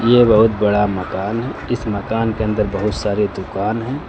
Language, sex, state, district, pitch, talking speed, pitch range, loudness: Hindi, male, Uttar Pradesh, Lucknow, 110 Hz, 190 wpm, 105-115 Hz, -18 LUFS